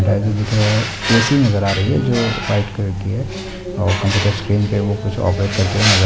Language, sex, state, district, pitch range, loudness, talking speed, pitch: Hindi, male, Bihar, Darbhanga, 100-110 Hz, -17 LUFS, 160 wpm, 105 Hz